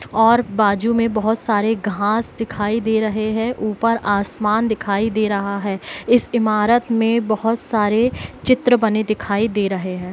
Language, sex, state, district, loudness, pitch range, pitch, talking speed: Hindi, female, Jharkhand, Sahebganj, -18 LUFS, 205-230 Hz, 220 Hz, 160 wpm